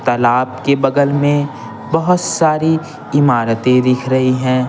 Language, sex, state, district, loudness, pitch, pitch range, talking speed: Hindi, male, Bihar, Patna, -14 LUFS, 135 Hz, 125-145 Hz, 130 wpm